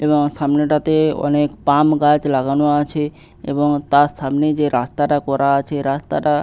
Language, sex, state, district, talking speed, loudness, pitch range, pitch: Bengali, male, West Bengal, Paschim Medinipur, 160 wpm, -17 LUFS, 145-150 Hz, 145 Hz